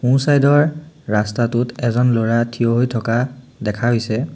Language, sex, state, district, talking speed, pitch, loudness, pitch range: Assamese, male, Assam, Sonitpur, 150 wpm, 120 Hz, -18 LUFS, 115-130 Hz